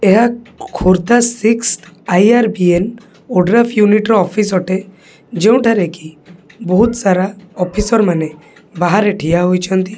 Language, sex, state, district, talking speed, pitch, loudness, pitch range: Odia, male, Odisha, Khordha, 120 wpm, 200 Hz, -13 LUFS, 180-225 Hz